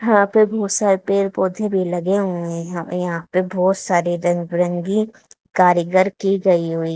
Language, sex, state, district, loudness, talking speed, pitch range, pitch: Hindi, female, Haryana, Charkhi Dadri, -19 LUFS, 200 wpm, 175-200 Hz, 185 Hz